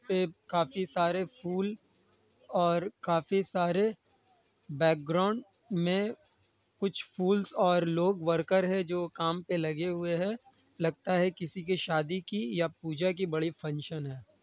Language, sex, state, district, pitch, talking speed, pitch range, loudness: Hindi, male, Bihar, Kishanganj, 180 Hz, 135 wpm, 165-190 Hz, -31 LUFS